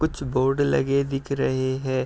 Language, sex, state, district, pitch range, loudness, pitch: Hindi, male, Uttar Pradesh, Etah, 130-140 Hz, -23 LUFS, 135 Hz